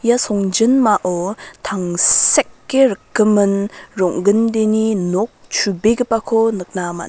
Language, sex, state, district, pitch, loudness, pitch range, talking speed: Garo, female, Meghalaya, West Garo Hills, 205 Hz, -16 LUFS, 190-225 Hz, 70 wpm